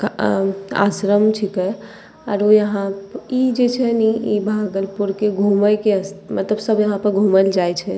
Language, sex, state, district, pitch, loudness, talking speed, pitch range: Angika, female, Bihar, Bhagalpur, 205 Hz, -18 LUFS, 180 wpm, 195-215 Hz